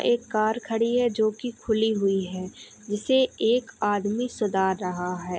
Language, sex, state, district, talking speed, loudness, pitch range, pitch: Hindi, female, Uttar Pradesh, Hamirpur, 155 wpm, -25 LUFS, 195-235 Hz, 215 Hz